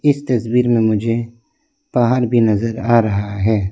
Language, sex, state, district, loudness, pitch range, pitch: Hindi, male, Arunachal Pradesh, Lower Dibang Valley, -16 LUFS, 110-125 Hz, 115 Hz